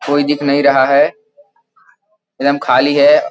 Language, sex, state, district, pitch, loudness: Hindi, male, Uttar Pradesh, Gorakhpur, 145 Hz, -12 LUFS